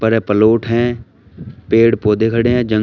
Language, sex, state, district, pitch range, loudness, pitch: Hindi, male, Uttar Pradesh, Shamli, 105-115 Hz, -14 LUFS, 115 Hz